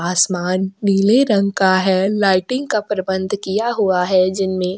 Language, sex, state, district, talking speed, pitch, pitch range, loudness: Hindi, female, Chhattisgarh, Sukma, 165 wpm, 190 Hz, 185-205 Hz, -17 LUFS